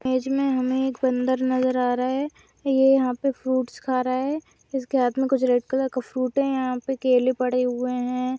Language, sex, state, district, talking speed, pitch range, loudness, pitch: Hindi, female, Goa, North and South Goa, 230 wpm, 255-265 Hz, -23 LUFS, 255 Hz